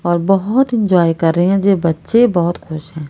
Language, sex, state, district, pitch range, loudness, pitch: Hindi, female, Haryana, Rohtak, 165-200 Hz, -14 LUFS, 175 Hz